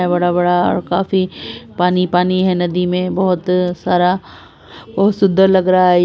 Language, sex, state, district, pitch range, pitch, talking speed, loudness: Hindi, female, Bihar, Saharsa, 175-185 Hz, 180 Hz, 170 wpm, -15 LUFS